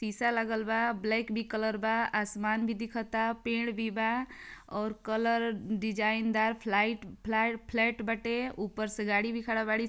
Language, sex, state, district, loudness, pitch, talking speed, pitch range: Bhojpuri, female, Uttar Pradesh, Ghazipur, -31 LUFS, 225 Hz, 165 wpm, 215-230 Hz